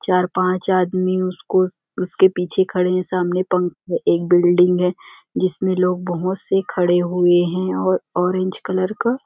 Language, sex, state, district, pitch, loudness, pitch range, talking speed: Hindi, female, Chhattisgarh, Rajnandgaon, 180 Hz, -19 LUFS, 180-185 Hz, 160 wpm